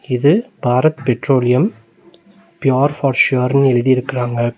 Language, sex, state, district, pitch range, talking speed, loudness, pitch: Tamil, male, Tamil Nadu, Nilgiris, 125-145 Hz, 90 wpm, -15 LUFS, 130 Hz